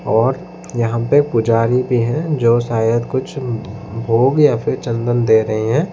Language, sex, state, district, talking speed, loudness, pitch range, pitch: Hindi, male, Odisha, Khordha, 160 wpm, -16 LUFS, 115-135 Hz, 120 Hz